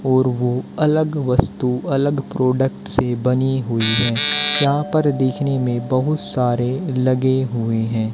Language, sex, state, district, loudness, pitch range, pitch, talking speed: Hindi, male, Haryana, Jhajjar, -18 LUFS, 120-140 Hz, 130 Hz, 140 wpm